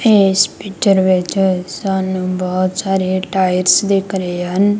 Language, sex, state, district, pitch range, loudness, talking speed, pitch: Punjabi, female, Punjab, Kapurthala, 185-195 Hz, -15 LUFS, 125 wpm, 190 Hz